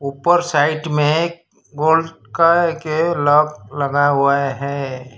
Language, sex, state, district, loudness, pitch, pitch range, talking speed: Hindi, male, Gujarat, Valsad, -17 LUFS, 150 Hz, 140-165 Hz, 115 wpm